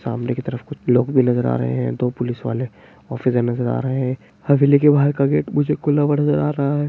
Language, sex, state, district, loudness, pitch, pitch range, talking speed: Hindi, male, Jharkhand, Jamtara, -19 LUFS, 130 Hz, 120-145 Hz, 260 wpm